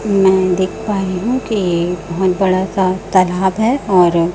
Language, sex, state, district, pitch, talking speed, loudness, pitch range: Hindi, female, Chhattisgarh, Raipur, 190 Hz, 165 wpm, -15 LUFS, 185-200 Hz